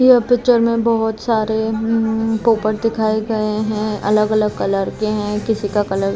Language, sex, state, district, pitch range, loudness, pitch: Hindi, female, Maharashtra, Mumbai Suburban, 215-225 Hz, -17 LUFS, 220 Hz